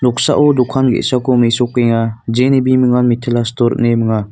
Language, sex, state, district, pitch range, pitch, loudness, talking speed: Garo, male, Meghalaya, North Garo Hills, 115-130 Hz, 125 Hz, -13 LUFS, 140 wpm